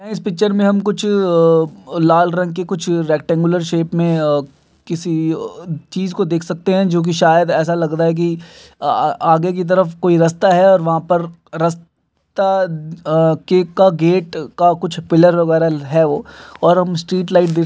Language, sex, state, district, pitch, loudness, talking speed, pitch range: Hindi, male, Uttar Pradesh, Muzaffarnagar, 170 Hz, -15 LUFS, 165 wpm, 165-185 Hz